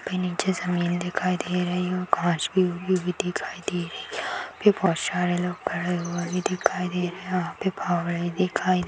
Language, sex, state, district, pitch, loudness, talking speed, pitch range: Hindi, female, Maharashtra, Aurangabad, 180 Hz, -26 LUFS, 210 wpm, 175-185 Hz